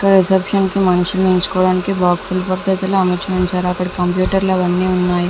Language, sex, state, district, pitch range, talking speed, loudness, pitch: Telugu, female, Andhra Pradesh, Visakhapatnam, 180-190 Hz, 180 wpm, -16 LUFS, 185 Hz